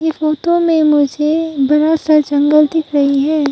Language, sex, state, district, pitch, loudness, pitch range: Hindi, female, Arunachal Pradesh, Papum Pare, 305 Hz, -13 LUFS, 290-320 Hz